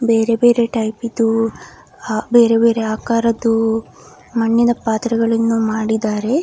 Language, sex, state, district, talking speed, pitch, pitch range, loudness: Kannada, female, Karnataka, Dakshina Kannada, 95 wpm, 230 Hz, 225-230 Hz, -16 LUFS